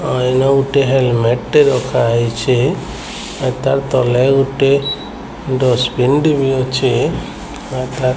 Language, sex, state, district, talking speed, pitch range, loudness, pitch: Odia, male, Odisha, Sambalpur, 110 wpm, 125-135 Hz, -15 LUFS, 130 Hz